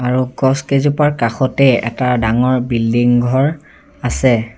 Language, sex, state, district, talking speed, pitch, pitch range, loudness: Assamese, male, Assam, Sonitpur, 120 wpm, 130 Hz, 120-135 Hz, -15 LUFS